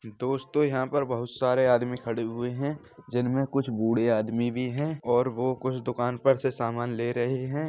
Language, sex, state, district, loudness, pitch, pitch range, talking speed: Hindi, male, Uttar Pradesh, Hamirpur, -27 LUFS, 125 Hz, 120-135 Hz, 195 wpm